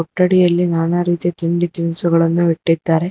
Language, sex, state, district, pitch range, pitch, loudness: Kannada, female, Karnataka, Bangalore, 165-175 Hz, 170 Hz, -16 LUFS